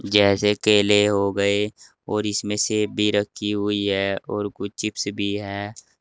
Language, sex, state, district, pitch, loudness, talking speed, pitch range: Hindi, male, Uttar Pradesh, Saharanpur, 105 Hz, -22 LUFS, 160 wpm, 100-105 Hz